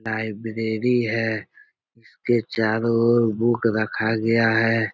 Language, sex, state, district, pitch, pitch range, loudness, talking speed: Hindi, male, Bihar, Jahanabad, 115 Hz, 110-115 Hz, -22 LUFS, 135 wpm